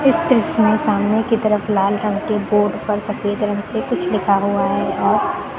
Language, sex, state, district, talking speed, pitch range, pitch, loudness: Hindi, female, Uttar Pradesh, Lucknow, 215 wpm, 205-215 Hz, 210 Hz, -18 LUFS